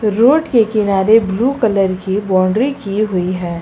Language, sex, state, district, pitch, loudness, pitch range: Hindi, female, Uttar Pradesh, Lucknow, 205 Hz, -14 LUFS, 190-225 Hz